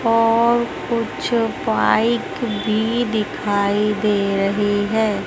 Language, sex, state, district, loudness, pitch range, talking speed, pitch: Hindi, female, Madhya Pradesh, Dhar, -19 LUFS, 205-230 Hz, 90 wpm, 215 Hz